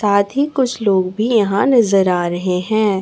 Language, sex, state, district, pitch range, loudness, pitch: Hindi, female, Chhattisgarh, Raipur, 190-230 Hz, -16 LUFS, 205 Hz